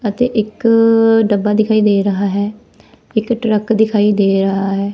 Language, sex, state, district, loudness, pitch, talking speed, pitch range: Punjabi, female, Punjab, Fazilka, -14 LUFS, 210 Hz, 160 wpm, 200-225 Hz